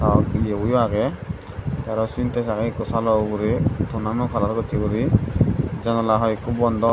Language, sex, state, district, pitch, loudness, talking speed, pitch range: Chakma, male, Tripura, Dhalai, 110 Hz, -22 LUFS, 140 wpm, 105-120 Hz